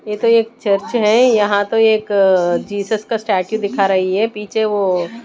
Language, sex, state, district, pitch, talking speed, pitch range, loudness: Hindi, female, Odisha, Nuapada, 210 Hz, 185 wpm, 195-225 Hz, -16 LUFS